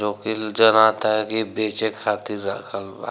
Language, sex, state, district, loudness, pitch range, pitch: Bhojpuri, male, Bihar, Gopalganj, -21 LUFS, 105-110 Hz, 110 Hz